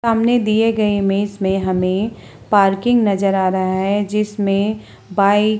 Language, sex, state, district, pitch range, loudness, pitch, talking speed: Hindi, female, Uttar Pradesh, Jalaun, 195-215 Hz, -17 LUFS, 205 Hz, 150 wpm